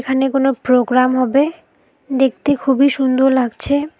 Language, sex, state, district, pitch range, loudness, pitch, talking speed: Bengali, female, West Bengal, Alipurduar, 255-280 Hz, -15 LUFS, 270 Hz, 120 wpm